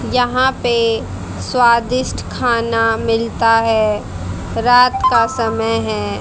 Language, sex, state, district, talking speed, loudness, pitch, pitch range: Hindi, female, Haryana, Jhajjar, 95 wpm, -15 LUFS, 230 Hz, 220-245 Hz